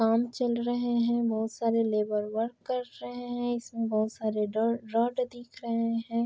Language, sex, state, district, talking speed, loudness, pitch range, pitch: Hindi, female, Uttar Pradesh, Varanasi, 180 wpm, -30 LUFS, 225-240 Hz, 230 Hz